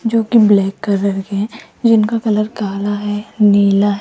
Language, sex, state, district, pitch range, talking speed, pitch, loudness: Hindi, female, Rajasthan, Jaipur, 200-220 Hz, 165 wpm, 205 Hz, -15 LUFS